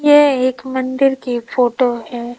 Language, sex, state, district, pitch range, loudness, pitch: Hindi, female, Rajasthan, Jaipur, 245-265 Hz, -16 LUFS, 255 Hz